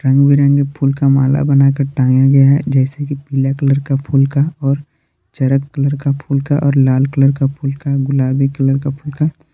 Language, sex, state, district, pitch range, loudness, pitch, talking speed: Hindi, male, Jharkhand, Palamu, 135-140 Hz, -14 LUFS, 140 Hz, 210 wpm